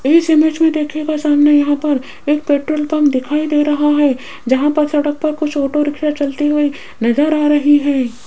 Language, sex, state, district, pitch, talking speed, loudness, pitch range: Hindi, female, Rajasthan, Jaipur, 295 Hz, 195 wpm, -15 LUFS, 285-305 Hz